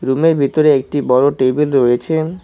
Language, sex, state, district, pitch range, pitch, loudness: Bengali, male, West Bengal, Cooch Behar, 130-155 Hz, 145 Hz, -14 LUFS